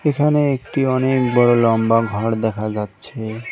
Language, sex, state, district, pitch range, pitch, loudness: Bengali, male, West Bengal, Cooch Behar, 110-130 Hz, 115 Hz, -18 LUFS